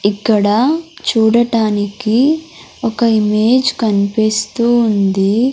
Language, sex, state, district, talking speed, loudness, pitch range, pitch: Telugu, female, Andhra Pradesh, Sri Satya Sai, 65 wpm, -14 LUFS, 210-240 Hz, 220 Hz